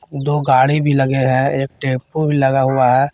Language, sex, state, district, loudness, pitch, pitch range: Hindi, male, Jharkhand, Garhwa, -16 LUFS, 135 Hz, 130-145 Hz